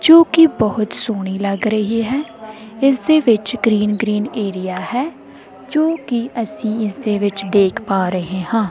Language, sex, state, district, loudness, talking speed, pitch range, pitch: Punjabi, female, Punjab, Kapurthala, -17 LUFS, 160 wpm, 205-250 Hz, 220 Hz